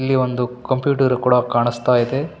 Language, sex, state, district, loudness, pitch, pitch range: Kannada, male, Karnataka, Bellary, -18 LUFS, 125 Hz, 125-135 Hz